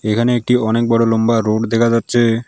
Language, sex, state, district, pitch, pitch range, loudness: Bengali, male, West Bengal, Alipurduar, 115 Hz, 115-120 Hz, -15 LUFS